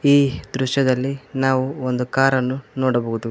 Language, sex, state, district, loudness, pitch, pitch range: Kannada, male, Karnataka, Koppal, -20 LUFS, 130 Hz, 125-135 Hz